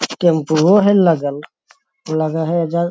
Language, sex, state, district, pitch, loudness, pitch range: Magahi, male, Bihar, Lakhisarai, 165 Hz, -15 LUFS, 155-175 Hz